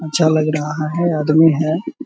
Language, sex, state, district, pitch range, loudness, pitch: Hindi, male, Bihar, Purnia, 155-165 Hz, -16 LUFS, 155 Hz